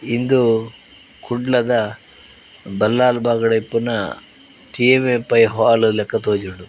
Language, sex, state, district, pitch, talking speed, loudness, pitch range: Tulu, male, Karnataka, Dakshina Kannada, 115 Hz, 100 wpm, -17 LUFS, 110-120 Hz